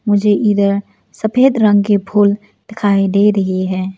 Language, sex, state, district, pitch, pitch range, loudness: Hindi, female, Arunachal Pradesh, Lower Dibang Valley, 205 Hz, 195-210 Hz, -14 LUFS